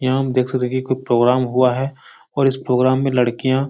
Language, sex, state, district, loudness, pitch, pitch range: Hindi, male, Bihar, Supaul, -18 LUFS, 130 Hz, 125-130 Hz